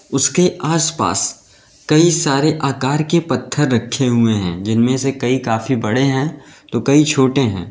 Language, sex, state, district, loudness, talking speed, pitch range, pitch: Hindi, male, Uttar Pradesh, Lalitpur, -16 LUFS, 155 wpm, 120-150 Hz, 135 Hz